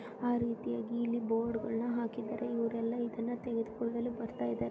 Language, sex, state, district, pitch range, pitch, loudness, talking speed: Kannada, female, Karnataka, Dakshina Kannada, 225-235 Hz, 230 Hz, -36 LUFS, 140 wpm